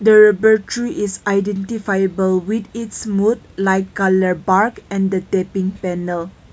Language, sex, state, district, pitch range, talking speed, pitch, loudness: English, female, Nagaland, Kohima, 190-215 Hz, 140 wpm, 195 Hz, -17 LUFS